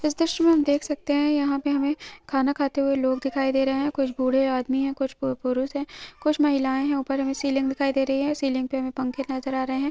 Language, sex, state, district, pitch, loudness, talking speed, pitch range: Hindi, female, Uttarakhand, Uttarkashi, 275 Hz, -24 LUFS, 265 wpm, 265-285 Hz